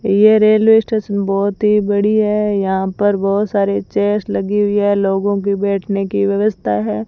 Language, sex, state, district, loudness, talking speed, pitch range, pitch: Hindi, female, Rajasthan, Bikaner, -15 LUFS, 185 wpm, 195-210 Hz, 205 Hz